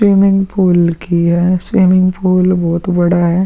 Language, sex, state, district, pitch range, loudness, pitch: Hindi, male, Uttar Pradesh, Muzaffarnagar, 175-190 Hz, -12 LUFS, 185 Hz